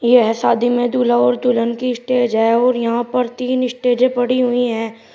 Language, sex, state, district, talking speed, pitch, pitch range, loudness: Hindi, male, Uttar Pradesh, Shamli, 200 wpm, 245 Hz, 235-250 Hz, -16 LUFS